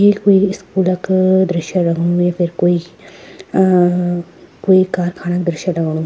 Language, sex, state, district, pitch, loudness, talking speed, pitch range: Garhwali, female, Uttarakhand, Tehri Garhwal, 180 Hz, -15 LUFS, 130 wpm, 175-190 Hz